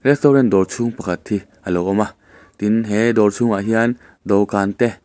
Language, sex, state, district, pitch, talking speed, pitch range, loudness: Mizo, male, Mizoram, Aizawl, 105 Hz, 200 wpm, 100-115 Hz, -18 LUFS